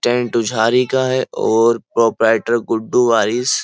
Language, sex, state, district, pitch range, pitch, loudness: Hindi, male, Uttar Pradesh, Jyotiba Phule Nagar, 115-125 Hz, 115 Hz, -16 LUFS